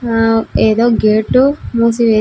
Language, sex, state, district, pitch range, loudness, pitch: Telugu, female, Andhra Pradesh, Sri Satya Sai, 220-235 Hz, -12 LUFS, 225 Hz